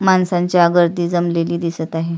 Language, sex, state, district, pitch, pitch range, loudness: Marathi, female, Maharashtra, Sindhudurg, 170 Hz, 170-175 Hz, -16 LUFS